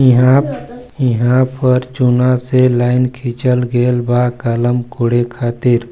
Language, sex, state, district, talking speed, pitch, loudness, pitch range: Hindi, male, Chhattisgarh, Balrampur, 110 wpm, 125 Hz, -14 LUFS, 120-130 Hz